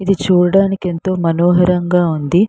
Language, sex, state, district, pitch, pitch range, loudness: Telugu, female, Andhra Pradesh, Srikakulam, 180 Hz, 175-190 Hz, -14 LUFS